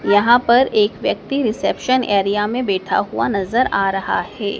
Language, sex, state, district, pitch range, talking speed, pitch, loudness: Hindi, male, Madhya Pradesh, Dhar, 200-245 Hz, 170 wpm, 210 Hz, -17 LUFS